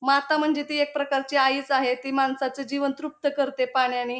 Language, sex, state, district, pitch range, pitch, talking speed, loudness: Marathi, female, Maharashtra, Pune, 265-285 Hz, 275 Hz, 185 wpm, -24 LUFS